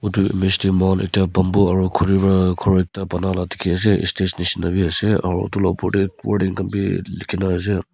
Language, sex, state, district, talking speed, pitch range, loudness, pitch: Nagamese, male, Nagaland, Kohima, 225 wpm, 90-100 Hz, -19 LUFS, 95 Hz